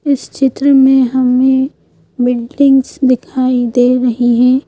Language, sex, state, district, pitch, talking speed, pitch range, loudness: Hindi, female, Madhya Pradesh, Bhopal, 260 Hz, 115 wpm, 245-270 Hz, -12 LUFS